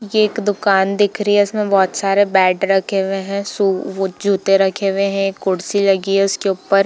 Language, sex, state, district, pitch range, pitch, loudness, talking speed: Hindi, female, Bihar, Darbhanga, 195-205 Hz, 195 Hz, -16 LUFS, 235 wpm